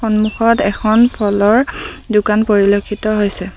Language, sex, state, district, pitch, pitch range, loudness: Assamese, female, Assam, Sonitpur, 215 Hz, 205-230 Hz, -14 LUFS